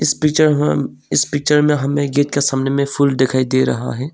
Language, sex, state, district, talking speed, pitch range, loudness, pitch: Hindi, male, Arunachal Pradesh, Longding, 215 wpm, 135-145 Hz, -16 LUFS, 140 Hz